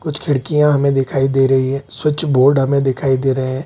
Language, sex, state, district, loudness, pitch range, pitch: Hindi, male, Bihar, Gaya, -15 LUFS, 135-145 Hz, 135 Hz